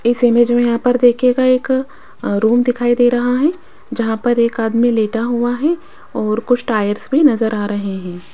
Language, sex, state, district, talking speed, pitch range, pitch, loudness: Hindi, female, Rajasthan, Jaipur, 195 wpm, 225-250 Hz, 240 Hz, -15 LUFS